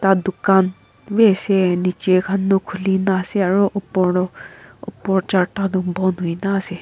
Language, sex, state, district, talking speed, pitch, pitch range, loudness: Nagamese, female, Nagaland, Kohima, 165 wpm, 190 Hz, 185-195 Hz, -18 LUFS